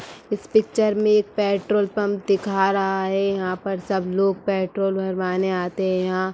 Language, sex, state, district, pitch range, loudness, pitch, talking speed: Hindi, female, Uttar Pradesh, Etah, 190-205 Hz, -22 LUFS, 195 Hz, 180 wpm